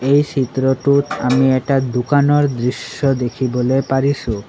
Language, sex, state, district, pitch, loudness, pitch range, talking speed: Assamese, male, Assam, Sonitpur, 135 Hz, -16 LUFS, 125-140 Hz, 105 wpm